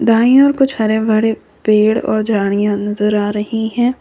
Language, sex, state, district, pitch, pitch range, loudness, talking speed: Hindi, female, Uttar Pradesh, Lalitpur, 220 Hz, 210-230 Hz, -14 LUFS, 180 wpm